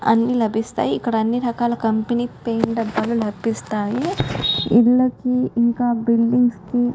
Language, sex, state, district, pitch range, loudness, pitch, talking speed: Telugu, female, Andhra Pradesh, Guntur, 225-245 Hz, -19 LUFS, 235 Hz, 120 wpm